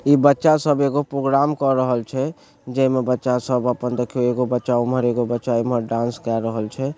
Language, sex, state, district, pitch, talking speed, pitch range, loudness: Maithili, male, Bihar, Supaul, 125 Hz, 215 wpm, 120-140 Hz, -20 LUFS